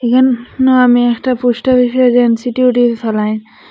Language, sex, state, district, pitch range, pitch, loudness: Bengali, female, Assam, Hailakandi, 235-255 Hz, 245 Hz, -12 LUFS